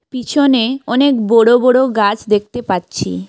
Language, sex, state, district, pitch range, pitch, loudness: Bengali, female, West Bengal, Alipurduar, 210-255 Hz, 235 Hz, -13 LUFS